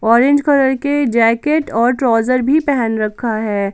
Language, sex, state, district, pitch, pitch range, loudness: Hindi, female, Jharkhand, Palamu, 245 Hz, 225-285 Hz, -15 LUFS